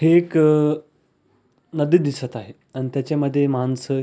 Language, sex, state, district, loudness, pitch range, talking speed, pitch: Marathi, male, Maharashtra, Aurangabad, -20 LUFS, 125-155 Hz, 120 wpm, 140 Hz